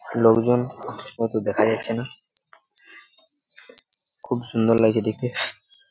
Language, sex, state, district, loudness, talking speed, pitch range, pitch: Bengali, male, West Bengal, Purulia, -23 LUFS, 100 wpm, 110-130 Hz, 115 Hz